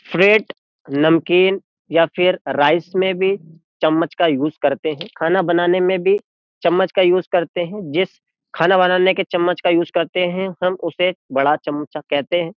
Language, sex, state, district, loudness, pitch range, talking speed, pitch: Hindi, male, Uttar Pradesh, Jyotiba Phule Nagar, -18 LUFS, 160-185 Hz, 170 wpm, 175 Hz